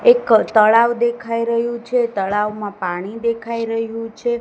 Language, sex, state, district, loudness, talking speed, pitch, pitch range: Gujarati, female, Gujarat, Gandhinagar, -18 LUFS, 135 wpm, 230 Hz, 215-235 Hz